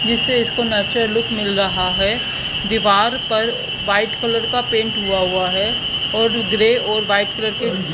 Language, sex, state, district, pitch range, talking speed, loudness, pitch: Hindi, female, Haryana, Charkhi Dadri, 200-230 Hz, 165 wpm, -17 LUFS, 220 Hz